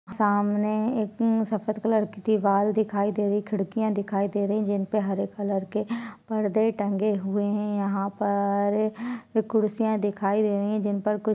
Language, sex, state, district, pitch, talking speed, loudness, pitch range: Hindi, female, Bihar, Purnia, 210 Hz, 175 wpm, -26 LUFS, 200-215 Hz